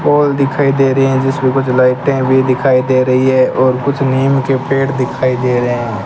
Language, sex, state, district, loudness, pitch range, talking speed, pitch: Hindi, male, Rajasthan, Bikaner, -13 LUFS, 130-135 Hz, 220 wpm, 130 Hz